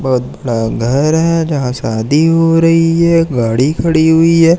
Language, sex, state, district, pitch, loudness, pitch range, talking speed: Hindi, male, Madhya Pradesh, Katni, 160 Hz, -12 LUFS, 125-165 Hz, 185 wpm